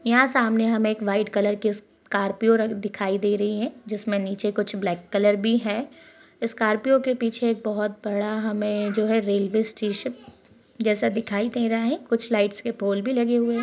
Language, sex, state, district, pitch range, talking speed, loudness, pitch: Hindi, female, Chhattisgarh, Bastar, 205-230 Hz, 185 wpm, -24 LUFS, 215 Hz